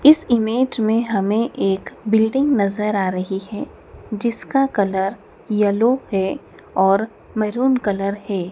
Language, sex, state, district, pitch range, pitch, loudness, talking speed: Hindi, female, Madhya Pradesh, Dhar, 195-235 Hz, 215 Hz, -20 LUFS, 125 wpm